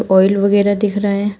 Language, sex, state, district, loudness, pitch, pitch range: Hindi, female, Uttar Pradesh, Shamli, -14 LUFS, 200 Hz, 200-205 Hz